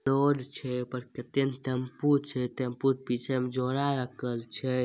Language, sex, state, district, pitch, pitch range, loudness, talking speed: Maithili, male, Bihar, Samastipur, 130 Hz, 125-135 Hz, -30 LUFS, 185 wpm